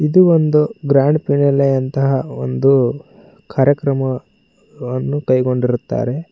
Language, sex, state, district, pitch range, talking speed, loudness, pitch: Kannada, male, Karnataka, Koppal, 130-150 Hz, 75 wpm, -16 LUFS, 140 Hz